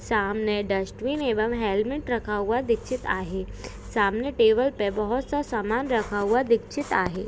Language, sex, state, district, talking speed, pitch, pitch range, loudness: Hindi, female, Maharashtra, Pune, 150 wpm, 225 Hz, 205-250 Hz, -25 LUFS